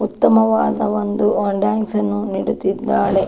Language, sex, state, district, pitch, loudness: Kannada, female, Karnataka, Dakshina Kannada, 200 Hz, -18 LUFS